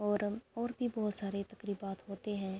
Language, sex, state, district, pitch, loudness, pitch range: Urdu, female, Andhra Pradesh, Anantapur, 205 Hz, -38 LUFS, 200-220 Hz